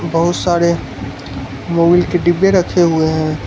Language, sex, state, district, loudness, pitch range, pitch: Hindi, male, Gujarat, Valsad, -14 LUFS, 165-175 Hz, 170 Hz